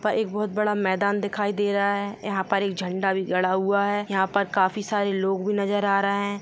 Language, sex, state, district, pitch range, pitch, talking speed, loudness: Hindi, female, Jharkhand, Jamtara, 195-205 Hz, 200 Hz, 250 wpm, -24 LUFS